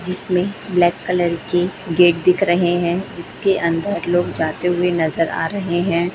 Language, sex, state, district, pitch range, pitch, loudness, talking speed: Hindi, female, Chhattisgarh, Raipur, 170-180 Hz, 175 Hz, -18 LUFS, 165 wpm